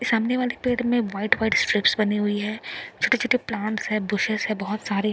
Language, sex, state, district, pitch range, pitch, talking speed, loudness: Hindi, female, Bihar, Katihar, 210-240 Hz, 220 Hz, 210 wpm, -23 LUFS